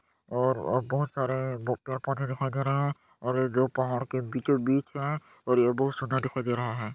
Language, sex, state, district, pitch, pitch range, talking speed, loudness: Hindi, male, Chhattisgarh, Balrampur, 130 Hz, 125-135 Hz, 205 wpm, -29 LUFS